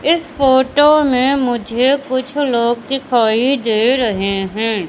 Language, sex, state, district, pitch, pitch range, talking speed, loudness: Hindi, female, Madhya Pradesh, Katni, 255 Hz, 225-275 Hz, 120 wpm, -15 LUFS